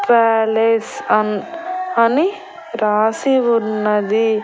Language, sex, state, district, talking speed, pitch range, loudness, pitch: Telugu, female, Andhra Pradesh, Annamaya, 70 wpm, 215-270 Hz, -17 LUFS, 225 Hz